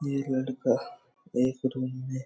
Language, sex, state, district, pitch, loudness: Hindi, male, Chhattisgarh, Raigarh, 130 Hz, -30 LUFS